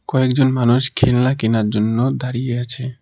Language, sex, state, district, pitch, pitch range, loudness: Bengali, male, West Bengal, Alipurduar, 125 Hz, 120-130 Hz, -17 LUFS